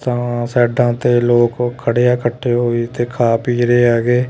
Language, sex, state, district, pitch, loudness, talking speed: Punjabi, male, Punjab, Kapurthala, 120 Hz, -15 LUFS, 180 wpm